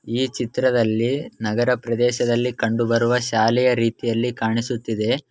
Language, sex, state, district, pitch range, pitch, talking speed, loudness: Kannada, male, Karnataka, Bellary, 115-125 Hz, 120 Hz, 100 wpm, -21 LUFS